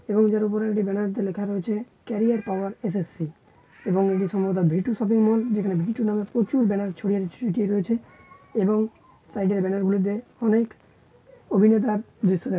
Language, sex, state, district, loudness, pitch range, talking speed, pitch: Bengali, male, West Bengal, Jhargram, -24 LUFS, 195-220 Hz, 155 wpm, 205 Hz